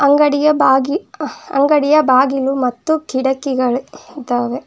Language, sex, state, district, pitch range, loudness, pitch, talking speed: Kannada, female, Karnataka, Bangalore, 260-300 Hz, -15 LUFS, 275 Hz, 100 wpm